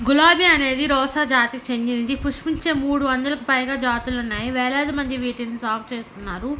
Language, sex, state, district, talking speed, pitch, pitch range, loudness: Telugu, female, Andhra Pradesh, Anantapur, 135 wpm, 260 Hz, 240-285 Hz, -20 LUFS